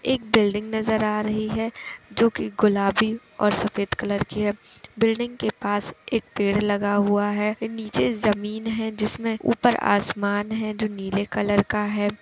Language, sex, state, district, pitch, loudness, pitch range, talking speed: Hindi, female, Uttar Pradesh, Etah, 210 Hz, -24 LUFS, 205-220 Hz, 175 wpm